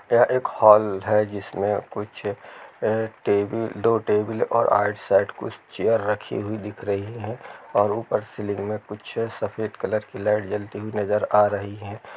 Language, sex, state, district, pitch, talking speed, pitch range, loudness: Hindi, male, Bihar, Sitamarhi, 105 Hz, 165 wpm, 100-110 Hz, -23 LUFS